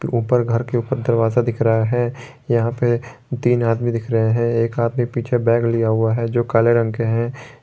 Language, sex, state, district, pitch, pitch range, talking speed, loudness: Hindi, male, Jharkhand, Garhwa, 120 Hz, 115-120 Hz, 210 wpm, -19 LUFS